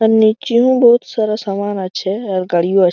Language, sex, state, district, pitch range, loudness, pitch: Bengali, female, West Bengal, Malda, 190-230 Hz, -15 LUFS, 215 Hz